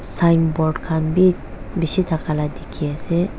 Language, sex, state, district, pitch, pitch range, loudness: Nagamese, female, Nagaland, Dimapur, 165 Hz, 155-175 Hz, -19 LUFS